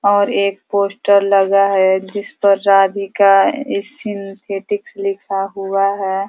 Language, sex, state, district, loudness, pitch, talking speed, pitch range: Hindi, female, Uttar Pradesh, Ghazipur, -16 LUFS, 200 Hz, 105 wpm, 195-200 Hz